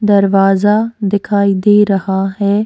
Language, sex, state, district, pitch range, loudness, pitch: Hindi, female, Goa, North and South Goa, 195-210 Hz, -12 LUFS, 200 Hz